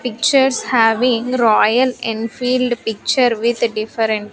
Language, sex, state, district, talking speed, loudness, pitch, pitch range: English, female, Andhra Pradesh, Sri Satya Sai, 110 wpm, -16 LUFS, 235 Hz, 225-250 Hz